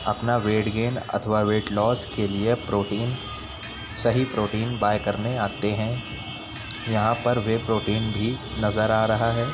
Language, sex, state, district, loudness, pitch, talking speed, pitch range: Hindi, male, Uttar Pradesh, Budaun, -25 LUFS, 110 Hz, 150 wpm, 105-115 Hz